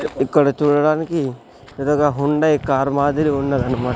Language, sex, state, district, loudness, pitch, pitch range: Telugu, male, Andhra Pradesh, Sri Satya Sai, -18 LUFS, 145 Hz, 135-150 Hz